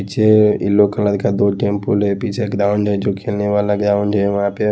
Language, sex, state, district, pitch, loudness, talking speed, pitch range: Hindi, male, Haryana, Rohtak, 100 Hz, -16 LUFS, 215 wpm, 100-105 Hz